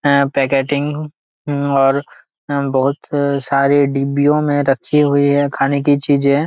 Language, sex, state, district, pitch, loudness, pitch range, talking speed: Hindi, male, Jharkhand, Jamtara, 140 Hz, -16 LUFS, 140-145 Hz, 130 wpm